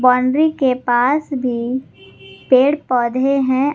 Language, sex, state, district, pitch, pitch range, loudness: Hindi, female, Jharkhand, Garhwa, 255 Hz, 240-275 Hz, -16 LUFS